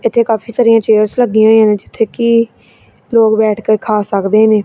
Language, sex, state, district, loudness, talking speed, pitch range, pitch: Punjabi, female, Punjab, Kapurthala, -12 LUFS, 165 wpm, 215-230 Hz, 220 Hz